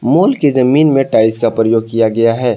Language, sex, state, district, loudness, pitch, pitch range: Hindi, male, Jharkhand, Palamu, -12 LUFS, 115 Hz, 115-135 Hz